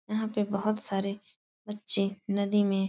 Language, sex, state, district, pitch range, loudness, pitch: Hindi, female, Uttar Pradesh, Etah, 200-210 Hz, -29 LUFS, 205 Hz